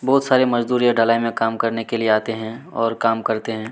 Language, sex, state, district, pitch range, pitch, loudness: Hindi, male, Chhattisgarh, Kabirdham, 115-120 Hz, 115 Hz, -19 LUFS